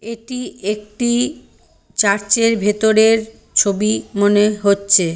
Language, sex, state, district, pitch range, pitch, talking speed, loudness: Bengali, female, West Bengal, Paschim Medinipur, 200-230 Hz, 210 Hz, 95 wpm, -16 LUFS